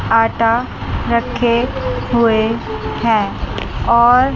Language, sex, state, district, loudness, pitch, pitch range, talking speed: Hindi, male, Chandigarh, Chandigarh, -16 LUFS, 235 Hz, 225-240 Hz, 70 wpm